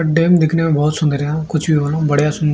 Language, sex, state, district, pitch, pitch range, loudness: Hindi, male, Odisha, Malkangiri, 155 Hz, 150-160 Hz, -15 LUFS